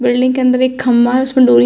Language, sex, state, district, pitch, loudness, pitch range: Hindi, female, Uttar Pradesh, Hamirpur, 255 Hz, -12 LUFS, 245-255 Hz